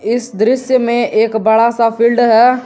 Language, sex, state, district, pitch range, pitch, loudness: Hindi, male, Jharkhand, Garhwa, 225-245 Hz, 235 Hz, -12 LUFS